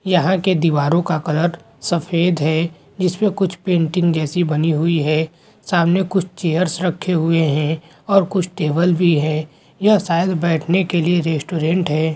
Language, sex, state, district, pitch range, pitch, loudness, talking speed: Hindi, male, Chhattisgarh, Rajnandgaon, 160-180 Hz, 170 Hz, -18 LUFS, 160 wpm